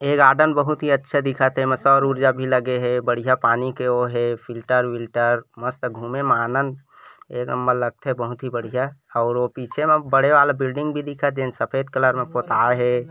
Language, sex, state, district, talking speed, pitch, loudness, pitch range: Chhattisgarhi, male, Chhattisgarh, Bilaspur, 200 wpm, 130 Hz, -20 LUFS, 125-140 Hz